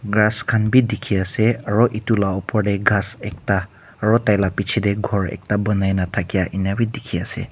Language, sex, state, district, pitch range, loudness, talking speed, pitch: Nagamese, male, Nagaland, Kohima, 95-110 Hz, -20 LUFS, 190 wpm, 105 Hz